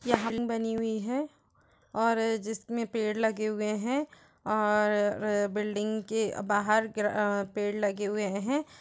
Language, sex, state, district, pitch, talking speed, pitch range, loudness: Hindi, female, Uttar Pradesh, Jalaun, 215 Hz, 145 wpm, 210-225 Hz, -30 LUFS